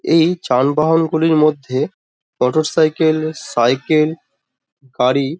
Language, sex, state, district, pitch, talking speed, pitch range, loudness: Bengali, male, West Bengal, Dakshin Dinajpur, 155 Hz, 100 wpm, 135-160 Hz, -16 LUFS